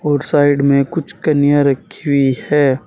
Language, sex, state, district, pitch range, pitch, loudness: Hindi, male, Uttar Pradesh, Saharanpur, 140-150 Hz, 145 Hz, -15 LUFS